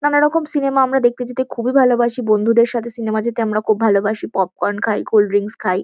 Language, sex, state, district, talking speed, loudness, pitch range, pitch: Bengali, female, West Bengal, Kolkata, 195 wpm, -17 LUFS, 215-255 Hz, 235 Hz